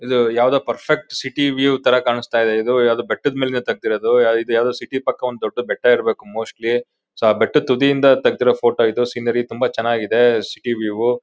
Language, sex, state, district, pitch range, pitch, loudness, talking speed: Kannada, male, Karnataka, Mysore, 115-130 Hz, 120 Hz, -18 LUFS, 200 wpm